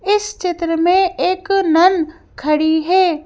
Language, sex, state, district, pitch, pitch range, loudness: Hindi, female, Madhya Pradesh, Bhopal, 360 Hz, 330-380 Hz, -16 LUFS